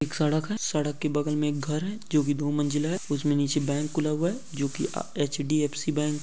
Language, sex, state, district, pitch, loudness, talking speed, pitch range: Hindi, male, Maharashtra, Aurangabad, 150 Hz, -27 LUFS, 240 wpm, 145-155 Hz